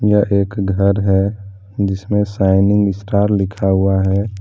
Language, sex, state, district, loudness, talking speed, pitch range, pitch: Hindi, male, Jharkhand, Deoghar, -16 LUFS, 135 wpm, 95-100 Hz, 100 Hz